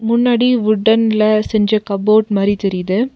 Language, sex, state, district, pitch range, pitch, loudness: Tamil, female, Tamil Nadu, Nilgiris, 205-225 Hz, 215 Hz, -14 LUFS